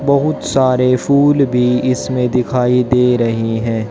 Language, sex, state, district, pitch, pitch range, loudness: Hindi, male, Haryana, Jhajjar, 125 Hz, 125-135 Hz, -14 LUFS